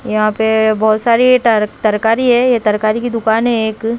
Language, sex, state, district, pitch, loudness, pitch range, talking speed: Hindi, female, Haryana, Rohtak, 220 Hz, -13 LUFS, 215-235 Hz, 180 wpm